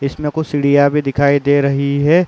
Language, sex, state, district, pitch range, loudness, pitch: Hindi, male, Uttar Pradesh, Muzaffarnagar, 140-150 Hz, -14 LUFS, 145 Hz